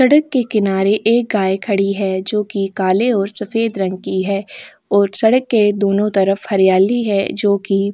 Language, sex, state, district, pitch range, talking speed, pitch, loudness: Hindi, female, Goa, North and South Goa, 195-220 Hz, 190 wpm, 200 Hz, -16 LUFS